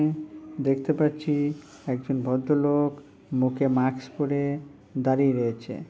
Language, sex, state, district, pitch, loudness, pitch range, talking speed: Bengali, female, West Bengal, Dakshin Dinajpur, 140 Hz, -26 LUFS, 130-150 Hz, 100 wpm